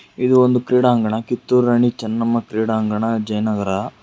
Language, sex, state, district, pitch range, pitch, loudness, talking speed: Kannada, male, Karnataka, Bangalore, 110-125 Hz, 115 Hz, -18 LUFS, 105 wpm